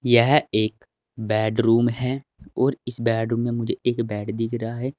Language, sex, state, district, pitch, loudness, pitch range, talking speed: Hindi, male, Uttar Pradesh, Saharanpur, 115 Hz, -23 LUFS, 115-125 Hz, 155 wpm